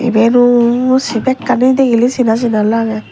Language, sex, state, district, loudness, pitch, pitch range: Chakma, female, Tripura, West Tripura, -12 LUFS, 240 Hz, 230-255 Hz